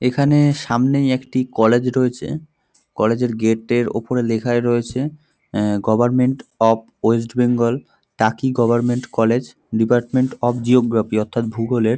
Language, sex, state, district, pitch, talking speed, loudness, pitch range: Bengali, male, West Bengal, North 24 Parganas, 120 Hz, 125 wpm, -18 LUFS, 115-130 Hz